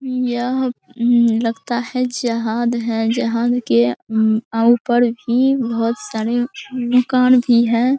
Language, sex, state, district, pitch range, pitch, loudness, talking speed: Hindi, female, Bihar, Araria, 230-250 Hz, 240 Hz, -17 LUFS, 115 wpm